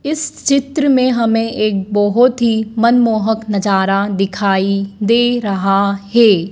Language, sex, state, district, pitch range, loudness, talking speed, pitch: Hindi, female, Madhya Pradesh, Dhar, 200-240 Hz, -14 LUFS, 120 wpm, 220 Hz